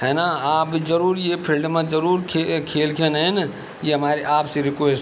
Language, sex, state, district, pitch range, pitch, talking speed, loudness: Garhwali, male, Uttarakhand, Tehri Garhwal, 150-165 Hz, 155 Hz, 180 wpm, -20 LUFS